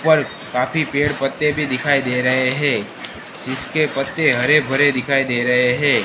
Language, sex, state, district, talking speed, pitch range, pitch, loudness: Hindi, male, Gujarat, Gandhinagar, 170 wpm, 130-150 Hz, 135 Hz, -18 LUFS